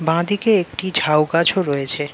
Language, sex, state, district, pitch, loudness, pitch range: Bengali, male, West Bengal, Jalpaiguri, 165 Hz, -17 LUFS, 150-190 Hz